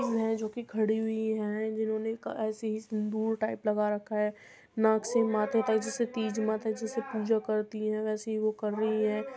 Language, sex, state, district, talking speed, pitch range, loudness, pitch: Hindi, female, Uttar Pradesh, Muzaffarnagar, 205 wpm, 215-225 Hz, -31 LUFS, 220 Hz